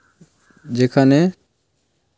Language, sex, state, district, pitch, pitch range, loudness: Bengali, male, West Bengal, Paschim Medinipur, 130 Hz, 120-150 Hz, -17 LUFS